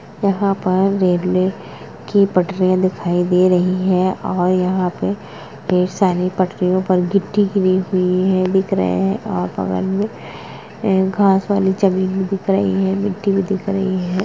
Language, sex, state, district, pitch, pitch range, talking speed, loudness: Hindi, female, Bihar, Gopalganj, 190 Hz, 180-195 Hz, 160 wpm, -17 LUFS